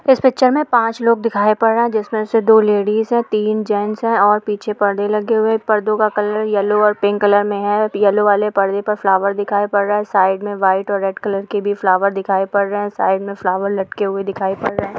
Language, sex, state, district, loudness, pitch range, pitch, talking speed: Hindi, female, Jharkhand, Jamtara, -16 LUFS, 200-215 Hz, 205 Hz, 250 wpm